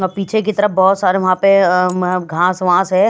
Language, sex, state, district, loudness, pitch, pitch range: Hindi, female, Bihar, Katihar, -14 LUFS, 185 Hz, 180-195 Hz